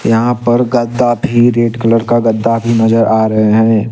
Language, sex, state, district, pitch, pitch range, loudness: Hindi, male, Jharkhand, Deoghar, 115 Hz, 115-120 Hz, -11 LUFS